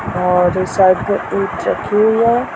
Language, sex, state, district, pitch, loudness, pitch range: Hindi, female, Bihar, Purnia, 185 Hz, -15 LUFS, 180-220 Hz